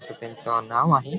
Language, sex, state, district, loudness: Marathi, male, Maharashtra, Dhule, -16 LUFS